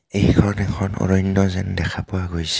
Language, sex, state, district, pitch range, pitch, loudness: Assamese, male, Assam, Kamrup Metropolitan, 85-95 Hz, 95 Hz, -20 LUFS